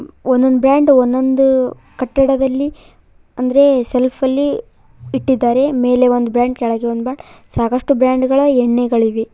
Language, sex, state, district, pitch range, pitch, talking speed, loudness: Kannada, female, Karnataka, Koppal, 245-270 Hz, 255 Hz, 115 wpm, -14 LUFS